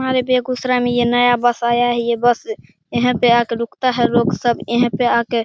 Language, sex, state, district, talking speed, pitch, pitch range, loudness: Hindi, male, Bihar, Begusarai, 230 wpm, 240 Hz, 235-250 Hz, -17 LUFS